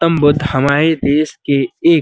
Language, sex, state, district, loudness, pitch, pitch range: Hindi, male, Uttar Pradesh, Budaun, -14 LUFS, 150 Hz, 140-160 Hz